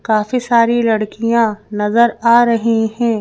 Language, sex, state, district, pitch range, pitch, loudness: Hindi, female, Madhya Pradesh, Bhopal, 220-235 Hz, 230 Hz, -14 LUFS